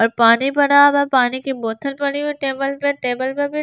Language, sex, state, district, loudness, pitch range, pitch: Hindi, female, Delhi, New Delhi, -17 LUFS, 255-285 Hz, 275 Hz